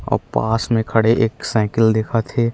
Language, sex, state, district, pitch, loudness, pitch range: Chhattisgarhi, male, Chhattisgarh, Raigarh, 115 Hz, -18 LUFS, 110-115 Hz